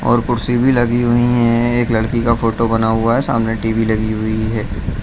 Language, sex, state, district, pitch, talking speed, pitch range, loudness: Hindi, male, Bihar, Jamui, 115 Hz, 215 wpm, 110-120 Hz, -16 LUFS